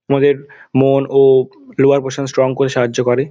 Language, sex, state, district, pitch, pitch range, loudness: Bengali, male, West Bengal, Dakshin Dinajpur, 135 Hz, 130-140 Hz, -14 LUFS